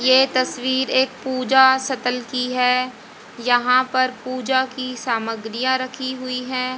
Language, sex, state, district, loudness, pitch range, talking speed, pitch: Hindi, female, Haryana, Jhajjar, -20 LUFS, 250-260 Hz, 135 wpm, 255 Hz